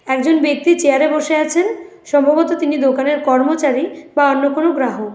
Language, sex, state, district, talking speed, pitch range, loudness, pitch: Bengali, female, West Bengal, Alipurduar, 150 wpm, 275-320 Hz, -15 LUFS, 295 Hz